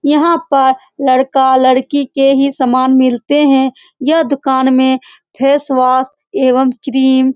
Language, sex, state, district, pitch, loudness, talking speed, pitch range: Hindi, female, Bihar, Saran, 265 Hz, -12 LUFS, 120 wpm, 260-280 Hz